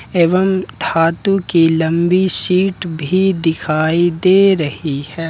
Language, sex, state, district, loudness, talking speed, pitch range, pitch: Hindi, male, Jharkhand, Ranchi, -14 LUFS, 115 wpm, 165-185 Hz, 170 Hz